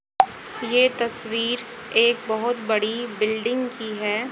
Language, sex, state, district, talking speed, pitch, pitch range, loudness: Hindi, female, Haryana, Charkhi Dadri, 110 wpm, 230 Hz, 220-240 Hz, -23 LUFS